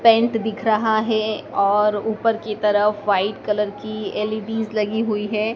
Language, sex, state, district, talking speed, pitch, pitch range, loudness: Hindi, female, Madhya Pradesh, Dhar, 160 wpm, 215 Hz, 210-220 Hz, -21 LUFS